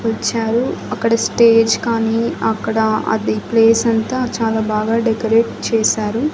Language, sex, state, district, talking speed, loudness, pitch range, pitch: Telugu, female, Andhra Pradesh, Annamaya, 105 wpm, -16 LUFS, 225-230 Hz, 225 Hz